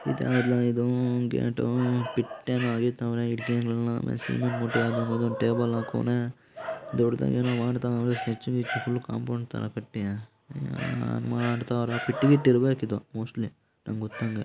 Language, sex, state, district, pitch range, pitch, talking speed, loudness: Kannada, male, Karnataka, Mysore, 115-125 Hz, 120 Hz, 135 wpm, -28 LUFS